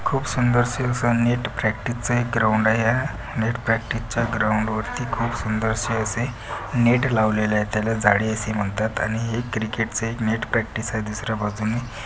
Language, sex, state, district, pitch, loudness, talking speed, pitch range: Marathi, male, Maharashtra, Pune, 115 Hz, -22 LUFS, 180 wpm, 110-120 Hz